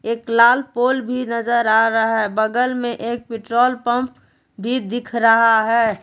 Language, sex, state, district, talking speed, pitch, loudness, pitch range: Hindi, female, Jharkhand, Palamu, 170 wpm, 235 Hz, -17 LUFS, 225-245 Hz